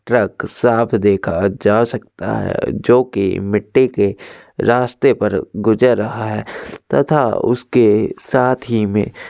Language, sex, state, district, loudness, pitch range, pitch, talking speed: Hindi, male, Chhattisgarh, Sukma, -16 LUFS, 105-125 Hz, 110 Hz, 120 wpm